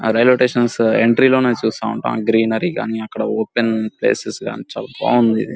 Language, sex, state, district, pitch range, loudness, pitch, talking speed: Telugu, male, Andhra Pradesh, Guntur, 110-120 Hz, -17 LUFS, 115 Hz, 175 wpm